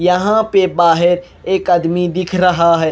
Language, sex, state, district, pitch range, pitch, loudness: Hindi, male, Punjab, Kapurthala, 170-185 Hz, 180 Hz, -14 LUFS